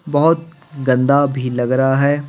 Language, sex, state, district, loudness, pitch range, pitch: Hindi, male, Bihar, Patna, -16 LUFS, 130-150 Hz, 140 Hz